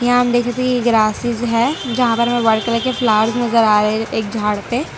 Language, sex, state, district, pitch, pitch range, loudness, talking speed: Hindi, female, Gujarat, Valsad, 235 Hz, 220-245 Hz, -16 LUFS, 265 wpm